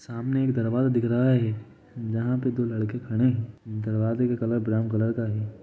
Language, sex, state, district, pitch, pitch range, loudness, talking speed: Hindi, male, Jharkhand, Sahebganj, 115 Hz, 110-125 Hz, -26 LUFS, 190 wpm